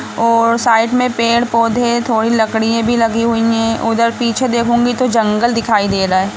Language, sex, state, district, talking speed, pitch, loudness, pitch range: Hindi, female, Jharkhand, Sahebganj, 200 wpm, 230 Hz, -14 LUFS, 225-235 Hz